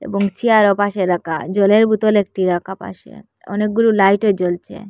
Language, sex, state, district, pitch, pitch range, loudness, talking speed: Bengali, female, Assam, Hailakandi, 200 Hz, 190-215 Hz, -16 LUFS, 145 wpm